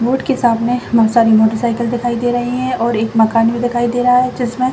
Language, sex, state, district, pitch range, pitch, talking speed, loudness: Hindi, female, Chhattisgarh, Bilaspur, 230-245 Hz, 240 Hz, 255 wpm, -14 LUFS